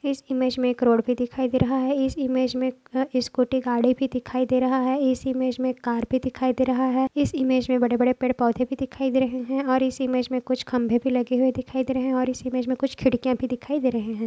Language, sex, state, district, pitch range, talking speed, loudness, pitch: Hindi, female, Maharashtra, Dhule, 250-260 Hz, 275 wpm, -24 LUFS, 255 Hz